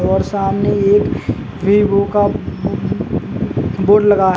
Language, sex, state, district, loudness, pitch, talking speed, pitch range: Hindi, male, Uttar Pradesh, Jalaun, -15 LUFS, 200 Hz, 95 wpm, 190-205 Hz